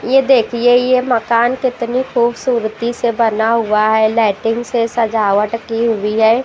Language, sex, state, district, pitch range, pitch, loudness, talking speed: Hindi, female, Maharashtra, Washim, 225-245 Hz, 230 Hz, -14 LUFS, 150 wpm